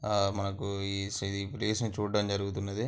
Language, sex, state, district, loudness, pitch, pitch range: Telugu, male, Andhra Pradesh, Anantapur, -32 LUFS, 100 Hz, 100-105 Hz